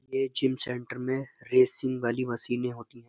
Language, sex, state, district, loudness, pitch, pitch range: Hindi, male, Uttar Pradesh, Jyotiba Phule Nagar, -29 LUFS, 125 Hz, 120-130 Hz